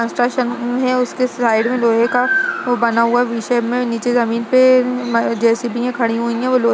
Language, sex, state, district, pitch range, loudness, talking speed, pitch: Hindi, female, Uttar Pradesh, Budaun, 230-250 Hz, -16 LUFS, 215 wpm, 240 Hz